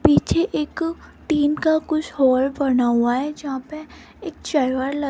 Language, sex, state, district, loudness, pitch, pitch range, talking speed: Hindi, female, Rajasthan, Jaipur, -21 LUFS, 290 Hz, 265-310 Hz, 175 wpm